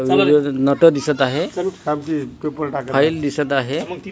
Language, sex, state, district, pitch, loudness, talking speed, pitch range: Marathi, male, Maharashtra, Washim, 145 Hz, -18 LUFS, 85 wpm, 140-150 Hz